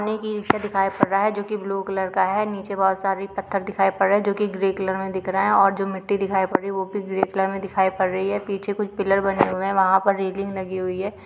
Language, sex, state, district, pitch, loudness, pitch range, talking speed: Hindi, female, Uttarakhand, Uttarkashi, 195 Hz, -22 LUFS, 190-200 Hz, 320 wpm